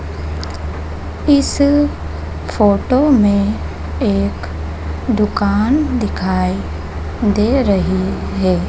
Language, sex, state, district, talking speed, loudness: Hindi, female, Madhya Pradesh, Dhar, 60 wpm, -17 LUFS